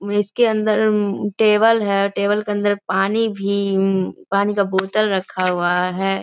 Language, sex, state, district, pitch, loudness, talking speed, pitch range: Hindi, female, Bihar, Begusarai, 200 Hz, -18 LUFS, 175 wpm, 195-210 Hz